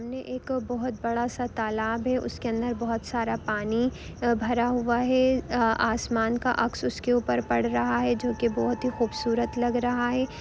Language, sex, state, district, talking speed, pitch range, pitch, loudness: Hindi, female, Chhattisgarh, Bilaspur, 195 wpm, 230-245 Hz, 240 Hz, -27 LUFS